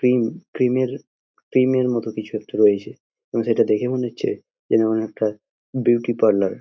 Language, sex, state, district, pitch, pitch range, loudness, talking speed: Bengali, male, West Bengal, Jhargram, 120 Hz, 110-125 Hz, -21 LUFS, 170 wpm